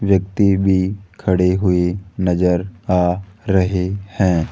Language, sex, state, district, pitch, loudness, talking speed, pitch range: Hindi, male, Rajasthan, Jaipur, 95 Hz, -18 LUFS, 105 wpm, 90-100 Hz